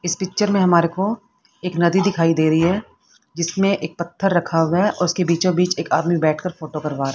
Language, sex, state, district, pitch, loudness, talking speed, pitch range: Hindi, female, Haryana, Rohtak, 175 Hz, -19 LUFS, 225 wpm, 165-195 Hz